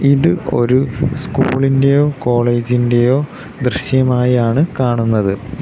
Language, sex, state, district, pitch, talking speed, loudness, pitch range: Malayalam, male, Kerala, Kollam, 130 Hz, 65 wpm, -15 LUFS, 120-140 Hz